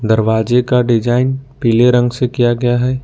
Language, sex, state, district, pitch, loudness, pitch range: Hindi, male, Jharkhand, Ranchi, 120 Hz, -14 LUFS, 120-125 Hz